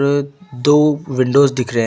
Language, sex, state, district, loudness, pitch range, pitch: Hindi, male, Uttar Pradesh, Lucknow, -15 LUFS, 125-145 Hz, 140 Hz